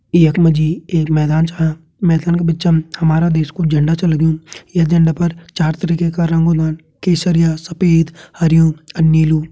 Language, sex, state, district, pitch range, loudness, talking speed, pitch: Garhwali, male, Uttarakhand, Tehri Garhwal, 160-170 Hz, -15 LUFS, 175 wpm, 165 Hz